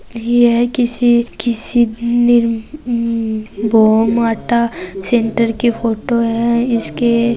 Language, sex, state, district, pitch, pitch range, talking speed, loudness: Hindi, female, Rajasthan, Churu, 235 Hz, 225-240 Hz, 65 wpm, -15 LUFS